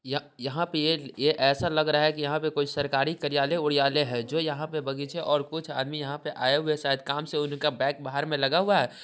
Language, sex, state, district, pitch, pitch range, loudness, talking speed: Hindi, male, Bihar, Sitamarhi, 145 Hz, 140-155 Hz, -27 LUFS, 225 wpm